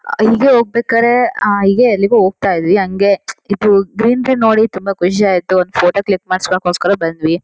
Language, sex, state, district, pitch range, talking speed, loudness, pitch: Kannada, female, Karnataka, Shimoga, 185-230 Hz, 170 wpm, -13 LUFS, 200 Hz